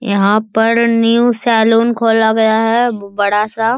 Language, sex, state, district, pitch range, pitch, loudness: Hindi, male, Bihar, Bhagalpur, 215-230 Hz, 225 Hz, -13 LUFS